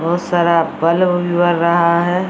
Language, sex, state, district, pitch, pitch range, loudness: Maithili, female, Bihar, Samastipur, 175 Hz, 170-175 Hz, -15 LUFS